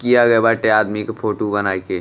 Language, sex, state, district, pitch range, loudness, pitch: Bhojpuri, male, Uttar Pradesh, Gorakhpur, 105-115 Hz, -17 LUFS, 110 Hz